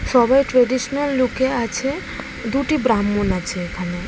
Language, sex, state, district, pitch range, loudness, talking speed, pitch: Bengali, female, West Bengal, Jalpaiguri, 205-265 Hz, -19 LUFS, 130 wpm, 250 Hz